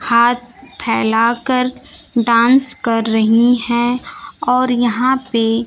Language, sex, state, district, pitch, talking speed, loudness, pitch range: Hindi, female, Bihar, Kaimur, 245 Hz, 105 wpm, -15 LUFS, 230-255 Hz